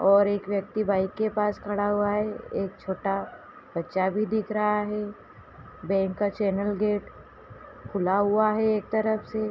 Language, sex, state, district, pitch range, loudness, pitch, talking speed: Hindi, female, Uttar Pradesh, Hamirpur, 195-215 Hz, -27 LUFS, 205 Hz, 165 wpm